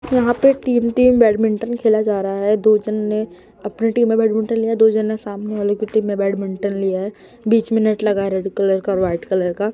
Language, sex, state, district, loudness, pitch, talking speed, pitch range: Hindi, male, Maharashtra, Mumbai Suburban, -18 LUFS, 215 Hz, 245 wpm, 200-225 Hz